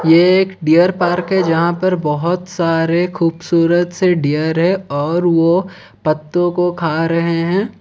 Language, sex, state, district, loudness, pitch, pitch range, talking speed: Hindi, male, Odisha, Khordha, -15 LUFS, 170 Hz, 165-180 Hz, 155 wpm